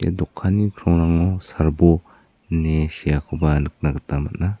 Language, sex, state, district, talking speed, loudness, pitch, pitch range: Garo, male, Meghalaya, South Garo Hills, 115 wpm, -20 LUFS, 80 Hz, 75-90 Hz